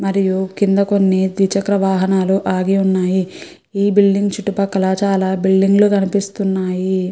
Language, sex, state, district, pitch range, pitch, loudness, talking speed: Telugu, female, Andhra Pradesh, Guntur, 190-200 Hz, 195 Hz, -16 LUFS, 110 wpm